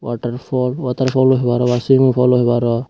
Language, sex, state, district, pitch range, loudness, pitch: Chakma, female, Tripura, West Tripura, 120-130 Hz, -16 LUFS, 125 Hz